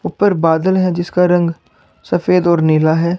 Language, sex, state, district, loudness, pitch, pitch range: Hindi, male, Chandigarh, Chandigarh, -14 LUFS, 175 Hz, 165-180 Hz